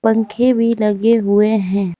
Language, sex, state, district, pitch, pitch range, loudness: Hindi, female, Jharkhand, Garhwa, 220 Hz, 205-230 Hz, -15 LUFS